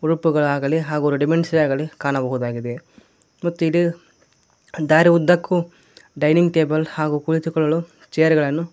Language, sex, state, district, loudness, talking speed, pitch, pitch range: Kannada, male, Karnataka, Koppal, -19 LUFS, 95 wpm, 160 Hz, 150-170 Hz